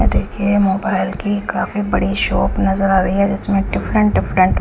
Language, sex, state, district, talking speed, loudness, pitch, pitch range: Hindi, female, Chandigarh, Chandigarh, 195 wpm, -17 LUFS, 195 Hz, 190-205 Hz